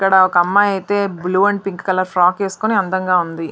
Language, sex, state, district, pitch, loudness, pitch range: Telugu, female, Andhra Pradesh, Srikakulam, 190 Hz, -16 LUFS, 180-200 Hz